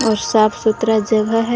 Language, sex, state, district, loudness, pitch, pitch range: Hindi, female, Jharkhand, Garhwa, -16 LUFS, 220 Hz, 215-225 Hz